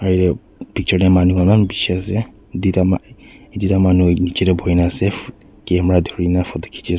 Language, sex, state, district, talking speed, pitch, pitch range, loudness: Nagamese, male, Nagaland, Dimapur, 195 wpm, 90 Hz, 90-95 Hz, -16 LUFS